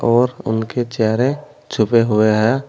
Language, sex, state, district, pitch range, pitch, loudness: Hindi, male, Uttar Pradesh, Saharanpur, 110-130 Hz, 115 Hz, -17 LUFS